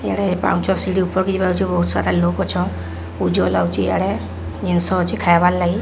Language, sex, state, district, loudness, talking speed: Odia, female, Odisha, Sambalpur, -19 LUFS, 125 wpm